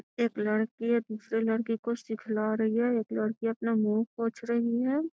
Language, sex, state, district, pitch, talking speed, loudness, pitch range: Magahi, female, Bihar, Gaya, 225 Hz, 185 wpm, -30 LUFS, 220-235 Hz